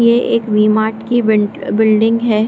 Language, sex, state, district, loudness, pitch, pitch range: Hindi, female, Bihar, Supaul, -14 LUFS, 220 Hz, 215-230 Hz